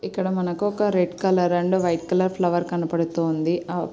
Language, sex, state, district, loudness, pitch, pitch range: Telugu, female, Andhra Pradesh, Srikakulam, -23 LUFS, 175 Hz, 170-185 Hz